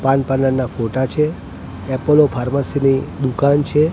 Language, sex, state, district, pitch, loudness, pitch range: Gujarati, male, Gujarat, Gandhinagar, 135 Hz, -17 LUFS, 130-145 Hz